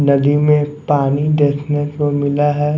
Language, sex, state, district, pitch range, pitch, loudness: Hindi, male, Chhattisgarh, Raipur, 145-150 Hz, 145 Hz, -16 LUFS